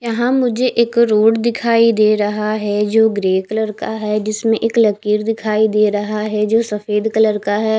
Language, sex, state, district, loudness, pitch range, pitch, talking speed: Hindi, female, Haryana, Rohtak, -16 LUFS, 210-225 Hz, 215 Hz, 195 wpm